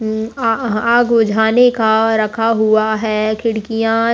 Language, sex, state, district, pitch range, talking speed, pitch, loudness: Hindi, female, Bihar, Purnia, 220-230 Hz, 130 wpm, 225 Hz, -14 LUFS